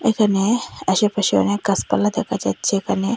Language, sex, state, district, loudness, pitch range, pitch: Bengali, female, Assam, Hailakandi, -19 LUFS, 200-225 Hz, 205 Hz